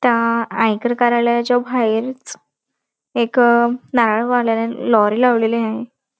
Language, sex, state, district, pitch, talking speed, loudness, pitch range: Marathi, female, Maharashtra, Dhule, 235 Hz, 85 wpm, -17 LUFS, 225-245 Hz